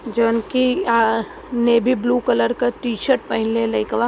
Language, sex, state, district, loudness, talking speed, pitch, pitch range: Hindi, male, Uttar Pradesh, Varanasi, -19 LUFS, 130 wpm, 235 Hz, 225-245 Hz